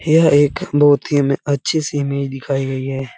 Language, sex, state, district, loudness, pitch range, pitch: Hindi, male, Bihar, Lakhisarai, -17 LUFS, 135-145 Hz, 140 Hz